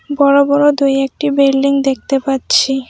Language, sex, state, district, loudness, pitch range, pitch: Bengali, female, West Bengal, Alipurduar, -13 LUFS, 270-280 Hz, 275 Hz